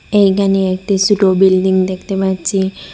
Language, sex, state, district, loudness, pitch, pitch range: Bengali, female, Assam, Hailakandi, -14 LUFS, 190 Hz, 190-195 Hz